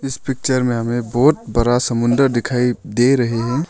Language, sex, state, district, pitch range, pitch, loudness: Hindi, male, Arunachal Pradesh, Longding, 120-130 Hz, 125 Hz, -17 LUFS